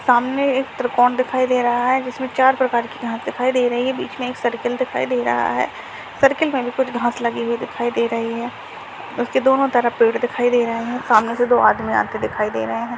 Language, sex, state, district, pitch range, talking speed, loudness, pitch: Hindi, male, Uttarakhand, Tehri Garhwal, 235-260 Hz, 250 wpm, -19 LUFS, 245 Hz